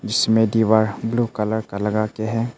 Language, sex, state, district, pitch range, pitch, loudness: Hindi, male, Arunachal Pradesh, Papum Pare, 110-115 Hz, 110 Hz, -20 LUFS